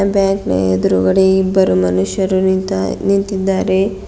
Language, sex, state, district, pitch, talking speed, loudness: Kannada, female, Karnataka, Bidar, 190 Hz, 105 wpm, -15 LUFS